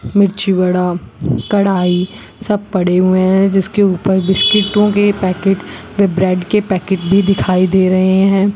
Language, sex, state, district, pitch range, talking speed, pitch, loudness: Hindi, female, Rajasthan, Bikaner, 185-200 Hz, 145 wpm, 190 Hz, -13 LUFS